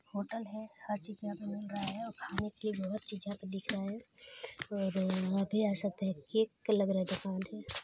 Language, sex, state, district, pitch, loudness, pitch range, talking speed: Hindi, female, Chhattisgarh, Balrampur, 205 Hz, -37 LUFS, 195-215 Hz, 230 wpm